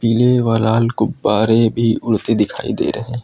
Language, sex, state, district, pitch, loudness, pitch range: Hindi, male, Uttar Pradesh, Lucknow, 115 Hz, -16 LUFS, 110-120 Hz